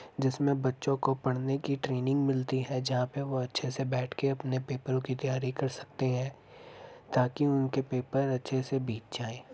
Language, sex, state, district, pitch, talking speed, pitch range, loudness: Hindi, male, Uttar Pradesh, Jyotiba Phule Nagar, 130 Hz, 170 wpm, 130-135 Hz, -31 LUFS